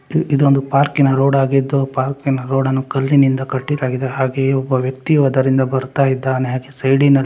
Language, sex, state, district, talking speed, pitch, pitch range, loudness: Kannada, male, Karnataka, Raichur, 140 wpm, 135 Hz, 130-140 Hz, -16 LUFS